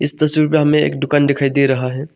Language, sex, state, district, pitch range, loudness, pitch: Hindi, male, Arunachal Pradesh, Longding, 140-150 Hz, -15 LUFS, 145 Hz